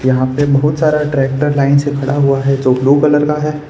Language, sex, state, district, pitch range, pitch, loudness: Hindi, male, Gujarat, Valsad, 135-150 Hz, 140 Hz, -13 LUFS